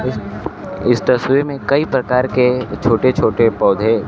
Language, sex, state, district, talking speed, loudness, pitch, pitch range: Hindi, male, Bihar, Kaimur, 130 wpm, -15 LUFS, 125 Hz, 110-130 Hz